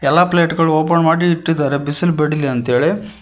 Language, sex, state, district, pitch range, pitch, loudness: Kannada, male, Karnataka, Koppal, 145-170 Hz, 165 Hz, -15 LUFS